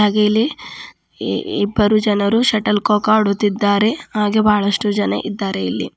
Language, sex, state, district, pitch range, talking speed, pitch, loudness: Kannada, female, Karnataka, Bidar, 205-215 Hz, 120 wpm, 210 Hz, -17 LUFS